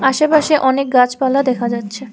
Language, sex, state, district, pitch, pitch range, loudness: Bengali, female, West Bengal, Alipurduar, 265 Hz, 250-275 Hz, -15 LUFS